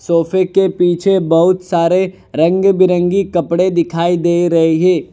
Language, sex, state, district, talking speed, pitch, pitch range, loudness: Hindi, male, Gujarat, Valsad, 140 wpm, 175 Hz, 170-185 Hz, -13 LUFS